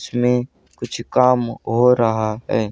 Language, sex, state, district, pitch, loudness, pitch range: Hindi, male, Haryana, Charkhi Dadri, 120 Hz, -18 LUFS, 110-125 Hz